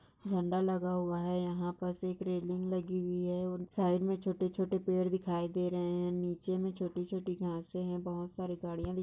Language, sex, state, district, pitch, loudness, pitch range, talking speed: Hindi, female, Maharashtra, Nagpur, 180 Hz, -36 LUFS, 175-185 Hz, 210 wpm